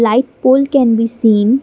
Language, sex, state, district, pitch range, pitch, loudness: English, female, Assam, Kamrup Metropolitan, 225-260 Hz, 245 Hz, -12 LUFS